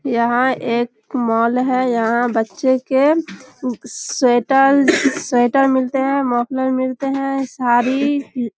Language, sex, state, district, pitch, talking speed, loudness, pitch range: Hindi, female, Bihar, Samastipur, 260 Hz, 110 wpm, -17 LUFS, 240-270 Hz